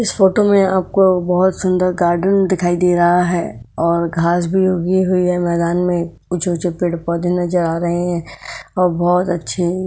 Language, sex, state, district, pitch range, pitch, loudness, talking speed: Hindi, female, Maharashtra, Chandrapur, 175-185 Hz, 180 Hz, -16 LUFS, 190 wpm